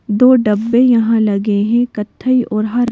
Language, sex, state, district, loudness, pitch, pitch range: Hindi, female, Madhya Pradesh, Bhopal, -14 LUFS, 230 Hz, 210-245 Hz